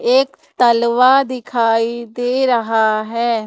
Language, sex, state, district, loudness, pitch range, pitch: Hindi, female, Madhya Pradesh, Umaria, -16 LUFS, 230-250 Hz, 235 Hz